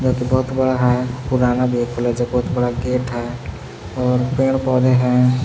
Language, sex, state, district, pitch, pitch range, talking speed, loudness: Hindi, male, Jharkhand, Palamu, 125 Hz, 125-130 Hz, 145 wpm, -18 LUFS